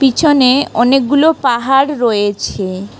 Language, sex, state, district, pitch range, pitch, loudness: Bengali, female, West Bengal, Alipurduar, 215-280 Hz, 260 Hz, -12 LUFS